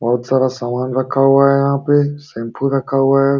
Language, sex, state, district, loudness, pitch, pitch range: Hindi, male, Uttar Pradesh, Jalaun, -15 LUFS, 135 Hz, 130-140 Hz